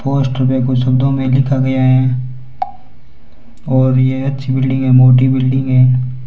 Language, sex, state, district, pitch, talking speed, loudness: Hindi, male, Rajasthan, Bikaner, 130 Hz, 155 wpm, -13 LUFS